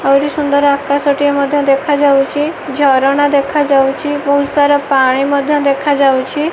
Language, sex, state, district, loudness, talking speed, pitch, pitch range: Odia, female, Odisha, Malkangiri, -12 LUFS, 155 wpm, 285 Hz, 275-290 Hz